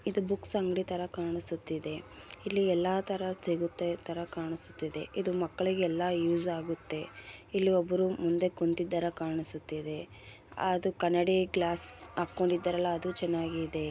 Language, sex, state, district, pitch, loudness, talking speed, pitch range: Kannada, female, Karnataka, Bellary, 175 Hz, -32 LUFS, 125 wpm, 165-185 Hz